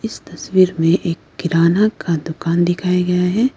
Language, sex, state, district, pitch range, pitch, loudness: Hindi, female, Arunachal Pradesh, Lower Dibang Valley, 165-185 Hz, 175 Hz, -17 LUFS